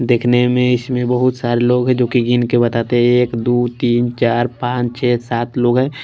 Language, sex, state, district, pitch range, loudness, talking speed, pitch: Hindi, male, Chhattisgarh, Raipur, 120-125 Hz, -15 LUFS, 220 wpm, 120 Hz